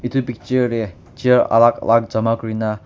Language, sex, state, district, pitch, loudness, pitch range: Nagamese, male, Nagaland, Kohima, 115 Hz, -17 LUFS, 110-125 Hz